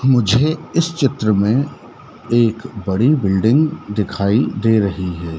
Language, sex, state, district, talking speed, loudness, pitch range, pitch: Hindi, male, Madhya Pradesh, Dhar, 120 wpm, -17 LUFS, 100-135 Hz, 115 Hz